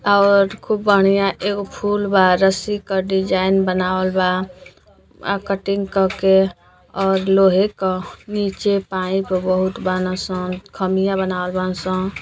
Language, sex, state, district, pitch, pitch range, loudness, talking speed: Bhojpuri, female, Uttar Pradesh, Deoria, 190 Hz, 185-200 Hz, -18 LUFS, 135 wpm